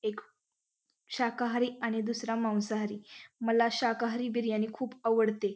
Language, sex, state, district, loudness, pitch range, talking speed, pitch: Marathi, female, Maharashtra, Pune, -31 LUFS, 215-235 Hz, 110 wpm, 230 Hz